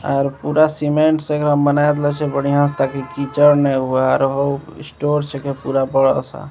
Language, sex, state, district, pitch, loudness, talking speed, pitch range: Maithili, male, Bihar, Begusarai, 145 Hz, -17 LUFS, 195 wpm, 140-150 Hz